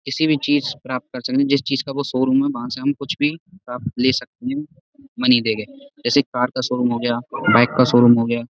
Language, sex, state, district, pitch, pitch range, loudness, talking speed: Hindi, male, Uttar Pradesh, Budaun, 135 Hz, 125-155 Hz, -19 LUFS, 240 wpm